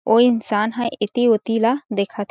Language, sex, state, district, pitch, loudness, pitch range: Chhattisgarhi, female, Chhattisgarh, Jashpur, 225 Hz, -19 LUFS, 210-240 Hz